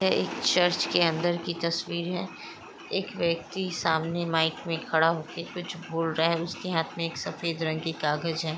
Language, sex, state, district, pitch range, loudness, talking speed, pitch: Hindi, female, Chhattisgarh, Raigarh, 160-175 Hz, -28 LUFS, 205 wpm, 165 Hz